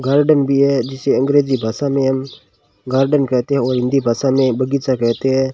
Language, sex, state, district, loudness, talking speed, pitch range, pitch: Hindi, male, Rajasthan, Bikaner, -16 LUFS, 195 wpm, 130-140 Hz, 135 Hz